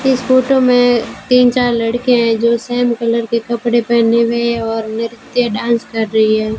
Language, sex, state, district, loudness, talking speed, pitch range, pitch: Hindi, female, Rajasthan, Bikaner, -14 LUFS, 190 wpm, 230-245 Hz, 235 Hz